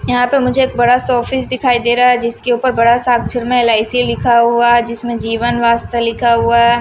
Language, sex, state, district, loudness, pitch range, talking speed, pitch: Hindi, female, Maharashtra, Washim, -13 LUFS, 235-245 Hz, 210 wpm, 240 Hz